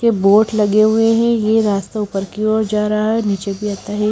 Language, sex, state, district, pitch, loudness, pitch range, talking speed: Hindi, female, Himachal Pradesh, Shimla, 210 Hz, -16 LUFS, 205-220 Hz, 250 wpm